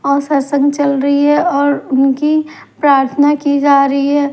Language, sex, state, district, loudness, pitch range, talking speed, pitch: Hindi, female, Maharashtra, Mumbai Suburban, -13 LUFS, 280-290 Hz, 165 wpm, 285 Hz